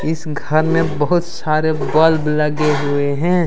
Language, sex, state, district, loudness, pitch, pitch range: Hindi, male, Jharkhand, Deoghar, -17 LUFS, 155 Hz, 150-160 Hz